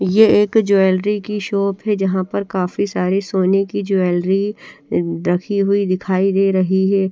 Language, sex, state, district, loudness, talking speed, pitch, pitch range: Hindi, female, Chandigarh, Chandigarh, -17 LUFS, 160 wpm, 195 Hz, 185-200 Hz